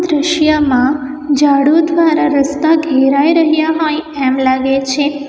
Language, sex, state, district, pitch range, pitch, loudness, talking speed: Gujarati, female, Gujarat, Valsad, 275-315 Hz, 290 Hz, -12 LUFS, 115 wpm